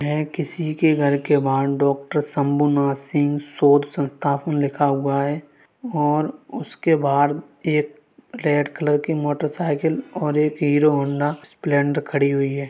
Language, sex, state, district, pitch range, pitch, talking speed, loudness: Hindi, male, Uttar Pradesh, Varanasi, 140-150 Hz, 145 Hz, 140 wpm, -21 LUFS